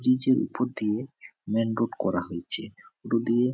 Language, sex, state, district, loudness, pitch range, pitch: Bengali, male, West Bengal, Jhargram, -27 LUFS, 105-130 Hz, 115 Hz